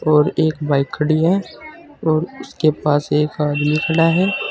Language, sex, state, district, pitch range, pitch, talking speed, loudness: Hindi, male, Uttar Pradesh, Saharanpur, 150-165 Hz, 155 Hz, 160 wpm, -18 LUFS